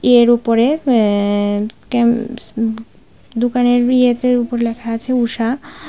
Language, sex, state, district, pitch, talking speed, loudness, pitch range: Bengali, female, Tripura, West Tripura, 235 Hz, 70 wpm, -16 LUFS, 230-245 Hz